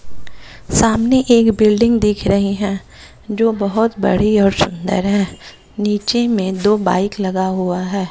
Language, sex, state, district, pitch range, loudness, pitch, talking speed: Hindi, female, Bihar, West Champaran, 190-220 Hz, -16 LUFS, 200 Hz, 140 wpm